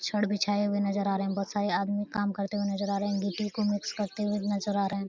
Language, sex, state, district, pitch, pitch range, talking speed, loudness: Hindi, female, Bihar, Araria, 205 Hz, 200-205 Hz, 305 wpm, -30 LUFS